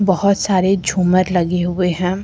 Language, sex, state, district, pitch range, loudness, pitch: Hindi, female, Jharkhand, Deoghar, 180-190 Hz, -16 LUFS, 185 Hz